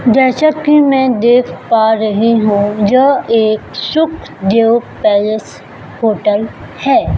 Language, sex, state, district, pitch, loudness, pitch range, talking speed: Hindi, female, Chhattisgarh, Raipur, 230 Hz, -12 LUFS, 215-265 Hz, 110 wpm